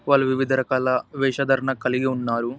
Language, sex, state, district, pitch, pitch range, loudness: Telugu, male, Andhra Pradesh, Anantapur, 130 Hz, 130-135 Hz, -22 LUFS